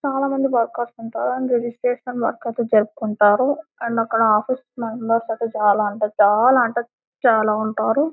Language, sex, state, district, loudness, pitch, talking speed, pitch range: Telugu, female, Telangana, Karimnagar, -20 LUFS, 235 Hz, 135 wpm, 220-255 Hz